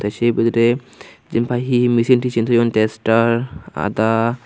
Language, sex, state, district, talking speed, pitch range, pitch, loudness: Chakma, male, Tripura, Unakoti, 120 wpm, 115-120 Hz, 115 Hz, -17 LUFS